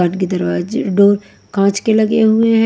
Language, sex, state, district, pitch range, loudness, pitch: Hindi, female, Haryana, Charkhi Dadri, 185-220 Hz, -15 LUFS, 200 Hz